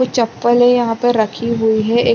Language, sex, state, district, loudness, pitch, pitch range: Hindi, female, Chhattisgarh, Bilaspur, -15 LUFS, 235 Hz, 225-245 Hz